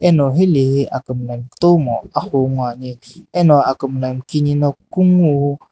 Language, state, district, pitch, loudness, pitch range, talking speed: Sumi, Nagaland, Dimapur, 140 Hz, -16 LUFS, 130-155 Hz, 135 wpm